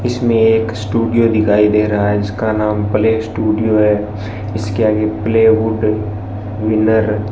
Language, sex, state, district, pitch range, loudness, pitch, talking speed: Hindi, male, Rajasthan, Bikaner, 105-110 Hz, -15 LUFS, 110 Hz, 145 wpm